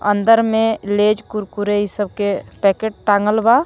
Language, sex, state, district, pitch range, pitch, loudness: Bhojpuri, female, Jharkhand, Palamu, 205-220 Hz, 210 Hz, -17 LUFS